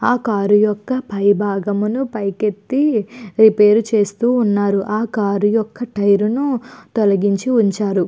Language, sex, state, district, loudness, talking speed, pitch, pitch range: Telugu, female, Andhra Pradesh, Guntur, -17 LUFS, 120 wpm, 210 Hz, 205-235 Hz